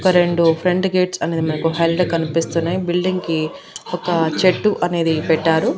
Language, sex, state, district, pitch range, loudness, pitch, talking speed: Telugu, female, Andhra Pradesh, Annamaya, 165-180 Hz, -18 LUFS, 170 Hz, 145 wpm